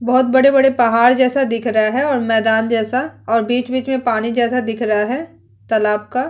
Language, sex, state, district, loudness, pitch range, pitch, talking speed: Hindi, female, Bihar, Vaishali, -16 LUFS, 225-260 Hz, 240 Hz, 200 wpm